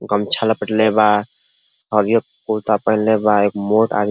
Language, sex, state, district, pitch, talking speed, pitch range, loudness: Bhojpuri, male, Uttar Pradesh, Ghazipur, 105 Hz, 160 wpm, 105-110 Hz, -17 LUFS